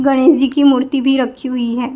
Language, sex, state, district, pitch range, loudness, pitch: Hindi, female, Gujarat, Gandhinagar, 255-275 Hz, -14 LUFS, 265 Hz